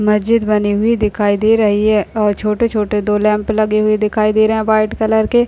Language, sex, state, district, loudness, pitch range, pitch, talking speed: Hindi, male, Uttar Pradesh, Deoria, -14 LUFS, 210-220 Hz, 215 Hz, 230 wpm